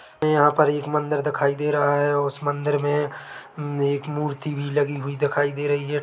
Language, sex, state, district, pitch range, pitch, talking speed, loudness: Hindi, male, Chhattisgarh, Bilaspur, 145-150 Hz, 145 Hz, 140 wpm, -23 LUFS